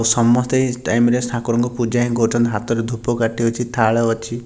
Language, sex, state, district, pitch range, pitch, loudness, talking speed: Odia, male, Odisha, Nuapada, 115-120 Hz, 120 Hz, -18 LUFS, 175 wpm